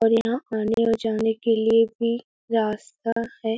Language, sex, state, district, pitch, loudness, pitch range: Hindi, female, Uttar Pradesh, Etah, 225 Hz, -23 LUFS, 225-230 Hz